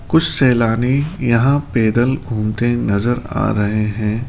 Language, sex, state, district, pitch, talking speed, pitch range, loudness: Hindi, male, Rajasthan, Jaipur, 120 Hz, 125 wpm, 110-130 Hz, -17 LUFS